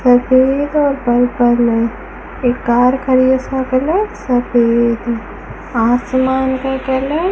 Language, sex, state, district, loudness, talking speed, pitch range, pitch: Hindi, female, Rajasthan, Bikaner, -14 LUFS, 90 wpm, 240-265 Hz, 255 Hz